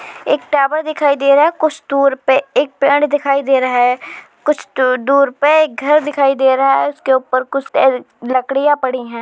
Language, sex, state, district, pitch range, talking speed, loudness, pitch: Hindi, female, Uttar Pradesh, Jyotiba Phule Nagar, 260-290 Hz, 200 wpm, -14 LUFS, 275 Hz